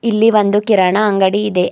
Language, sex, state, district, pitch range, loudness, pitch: Kannada, female, Karnataka, Bidar, 190-215 Hz, -13 LUFS, 205 Hz